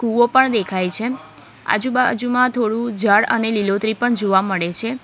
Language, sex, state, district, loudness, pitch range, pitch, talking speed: Gujarati, female, Gujarat, Valsad, -18 LUFS, 205-245 Hz, 230 Hz, 155 wpm